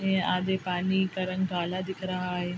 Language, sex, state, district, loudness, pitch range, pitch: Hindi, female, Bihar, Araria, -29 LUFS, 180-190 Hz, 185 Hz